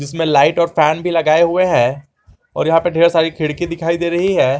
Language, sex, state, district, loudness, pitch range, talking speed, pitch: Hindi, male, Jharkhand, Garhwa, -15 LUFS, 150-170 Hz, 235 wpm, 165 Hz